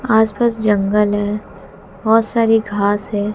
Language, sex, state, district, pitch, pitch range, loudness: Hindi, female, Haryana, Jhajjar, 210 Hz, 205-225 Hz, -16 LUFS